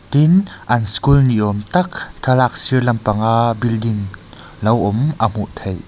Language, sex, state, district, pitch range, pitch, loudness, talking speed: Mizo, male, Mizoram, Aizawl, 105-130 Hz, 115 Hz, -16 LUFS, 155 wpm